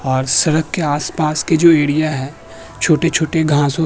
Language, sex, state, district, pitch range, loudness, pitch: Hindi, male, Uttar Pradesh, Hamirpur, 145-160 Hz, -15 LUFS, 155 Hz